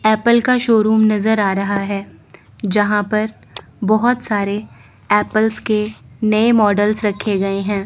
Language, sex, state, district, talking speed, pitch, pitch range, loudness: Hindi, female, Chandigarh, Chandigarh, 135 wpm, 215 Hz, 205-220 Hz, -17 LUFS